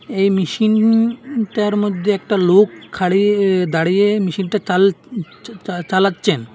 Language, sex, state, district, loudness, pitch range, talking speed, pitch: Bengali, male, Assam, Hailakandi, -16 LUFS, 190-210 Hz, 90 wpm, 200 Hz